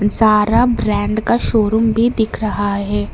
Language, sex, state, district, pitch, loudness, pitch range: Hindi, male, Karnataka, Bangalore, 215 Hz, -15 LUFS, 205-225 Hz